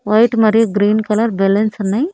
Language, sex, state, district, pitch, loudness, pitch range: Telugu, female, Andhra Pradesh, Annamaya, 215 Hz, -14 LUFS, 205-225 Hz